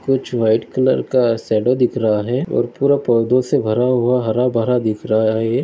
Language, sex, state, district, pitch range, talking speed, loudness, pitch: Hindi, male, Maharashtra, Dhule, 110-125 Hz, 190 wpm, -17 LUFS, 120 Hz